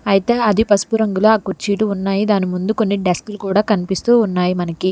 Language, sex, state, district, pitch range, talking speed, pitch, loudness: Telugu, female, Telangana, Hyderabad, 190-215 Hz, 185 wpm, 205 Hz, -17 LUFS